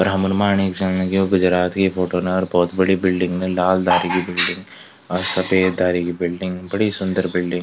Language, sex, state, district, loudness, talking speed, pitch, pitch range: Garhwali, male, Uttarakhand, Tehri Garhwal, -19 LUFS, 195 wpm, 95 Hz, 90-95 Hz